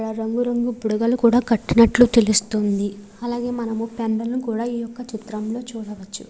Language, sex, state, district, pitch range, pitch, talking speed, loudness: Telugu, female, Andhra Pradesh, Srikakulam, 220-240 Hz, 230 Hz, 145 wpm, -21 LUFS